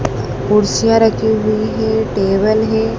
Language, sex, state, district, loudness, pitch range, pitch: Hindi, female, Madhya Pradesh, Dhar, -14 LUFS, 195-220 Hz, 215 Hz